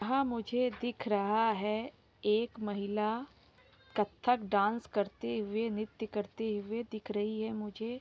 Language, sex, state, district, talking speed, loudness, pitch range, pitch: Hindi, female, Bihar, Jahanabad, 135 wpm, -34 LUFS, 210-230 Hz, 215 Hz